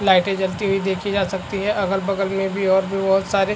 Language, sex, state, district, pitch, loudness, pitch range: Hindi, female, Chhattisgarh, Korba, 195 Hz, -20 LUFS, 190-195 Hz